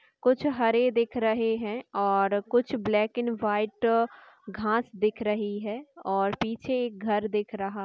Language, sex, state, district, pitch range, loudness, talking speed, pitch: Hindi, female, Chhattisgarh, Sukma, 210-235 Hz, -27 LUFS, 160 wpm, 220 Hz